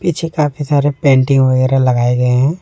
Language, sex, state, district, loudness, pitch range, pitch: Hindi, male, Jharkhand, Deoghar, -13 LUFS, 130-150 Hz, 135 Hz